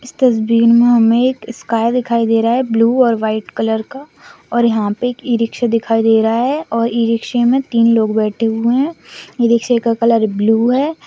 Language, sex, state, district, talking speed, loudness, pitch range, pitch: Hindi, female, West Bengal, Dakshin Dinajpur, 215 wpm, -14 LUFS, 225-245 Hz, 230 Hz